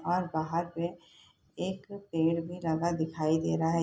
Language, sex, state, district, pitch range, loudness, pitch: Hindi, female, Bihar, Saharsa, 160-175 Hz, -32 LUFS, 165 Hz